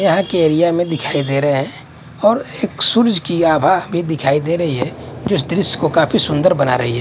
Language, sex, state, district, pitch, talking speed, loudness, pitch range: Hindi, male, Haryana, Charkhi Dadri, 160 Hz, 220 wpm, -16 LUFS, 140-175 Hz